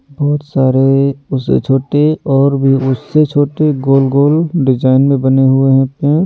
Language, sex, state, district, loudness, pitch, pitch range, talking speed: Hindi, male, Delhi, New Delhi, -12 LUFS, 135 Hz, 135-145 Hz, 145 wpm